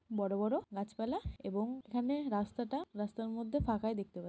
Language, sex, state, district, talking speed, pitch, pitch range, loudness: Bengali, female, West Bengal, Jhargram, 155 wpm, 225 Hz, 205-245 Hz, -38 LUFS